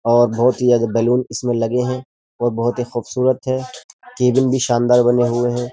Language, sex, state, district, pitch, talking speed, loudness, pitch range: Hindi, male, Uttar Pradesh, Jyotiba Phule Nagar, 120 Hz, 200 wpm, -17 LUFS, 120-125 Hz